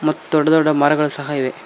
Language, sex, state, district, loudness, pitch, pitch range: Kannada, male, Karnataka, Koppal, -16 LUFS, 150 Hz, 145-155 Hz